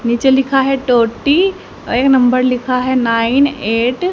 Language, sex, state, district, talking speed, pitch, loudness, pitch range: Hindi, female, Haryana, Charkhi Dadri, 175 wpm, 255 Hz, -13 LUFS, 240-270 Hz